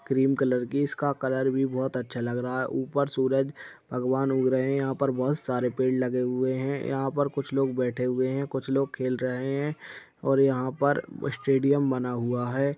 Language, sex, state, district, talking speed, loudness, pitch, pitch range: Hindi, male, Uttar Pradesh, Deoria, 205 wpm, -27 LUFS, 130 Hz, 130-135 Hz